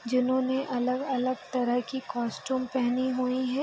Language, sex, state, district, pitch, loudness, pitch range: Hindi, female, Bihar, Gopalganj, 255 Hz, -29 LUFS, 250-260 Hz